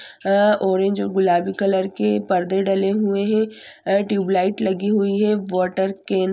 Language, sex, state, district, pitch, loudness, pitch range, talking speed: Hindi, female, Bihar, Saran, 195 Hz, -20 LUFS, 190-205 Hz, 160 wpm